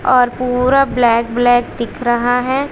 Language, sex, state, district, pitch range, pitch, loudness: Hindi, female, Bihar, West Champaran, 240-255 Hz, 245 Hz, -14 LUFS